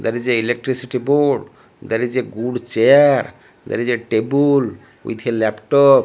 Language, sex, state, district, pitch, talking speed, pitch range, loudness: English, male, Odisha, Malkangiri, 125 Hz, 160 wpm, 115-135 Hz, -17 LUFS